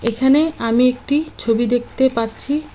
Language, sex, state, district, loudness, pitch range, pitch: Bengali, female, West Bengal, Cooch Behar, -17 LUFS, 230-285 Hz, 250 Hz